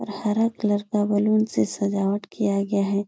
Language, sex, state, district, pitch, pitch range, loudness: Hindi, female, Uttar Pradesh, Etah, 205 Hz, 200-210 Hz, -23 LUFS